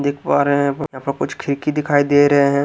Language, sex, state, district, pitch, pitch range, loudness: Hindi, male, Haryana, Jhajjar, 140 Hz, 140-145 Hz, -17 LUFS